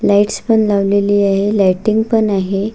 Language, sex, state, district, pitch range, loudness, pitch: Marathi, female, Maharashtra, Solapur, 195-215 Hz, -14 LUFS, 205 Hz